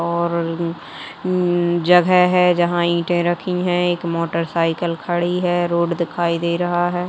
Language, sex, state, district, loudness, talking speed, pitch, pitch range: Hindi, female, Uttar Pradesh, Jalaun, -18 LUFS, 160 wpm, 175 Hz, 170-175 Hz